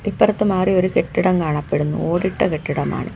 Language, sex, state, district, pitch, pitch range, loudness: Malayalam, female, Kerala, Kollam, 185 Hz, 155-185 Hz, -19 LUFS